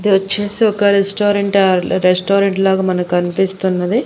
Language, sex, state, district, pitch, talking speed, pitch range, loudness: Telugu, female, Andhra Pradesh, Annamaya, 195 Hz, 135 wpm, 185-200 Hz, -14 LUFS